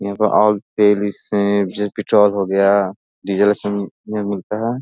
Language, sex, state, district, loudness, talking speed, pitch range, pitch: Hindi, male, Bihar, Jahanabad, -17 LUFS, 150 wpm, 100-105 Hz, 105 Hz